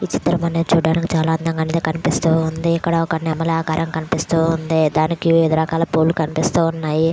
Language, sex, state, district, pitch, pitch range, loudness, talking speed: Telugu, female, Andhra Pradesh, Visakhapatnam, 160 Hz, 160-165 Hz, -18 LUFS, 170 wpm